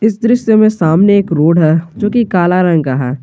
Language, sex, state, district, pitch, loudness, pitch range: Hindi, male, Jharkhand, Garhwa, 180 Hz, -11 LUFS, 160-215 Hz